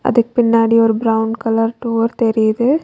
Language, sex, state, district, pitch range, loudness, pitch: Tamil, female, Tamil Nadu, Nilgiris, 225-235 Hz, -15 LUFS, 230 Hz